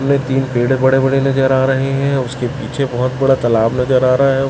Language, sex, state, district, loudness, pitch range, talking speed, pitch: Hindi, male, Chhattisgarh, Raipur, -15 LUFS, 125-135 Hz, 250 wpm, 135 Hz